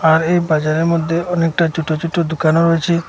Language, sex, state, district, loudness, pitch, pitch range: Bengali, male, Assam, Hailakandi, -16 LUFS, 165 Hz, 160-170 Hz